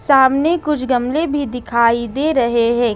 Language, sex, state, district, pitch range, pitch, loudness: Hindi, female, Jharkhand, Ranchi, 235-290 Hz, 260 Hz, -16 LUFS